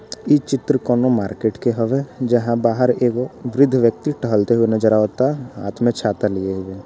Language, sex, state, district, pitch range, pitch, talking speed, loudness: Bhojpuri, male, Bihar, Gopalganj, 110-130 Hz, 120 Hz, 175 wpm, -18 LUFS